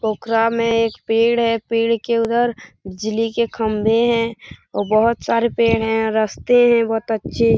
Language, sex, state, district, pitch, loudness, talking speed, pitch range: Hindi, female, Bihar, Saran, 230 Hz, -18 LUFS, 175 wpm, 220-230 Hz